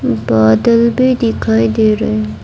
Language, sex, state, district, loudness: Hindi, female, Arunachal Pradesh, Lower Dibang Valley, -12 LUFS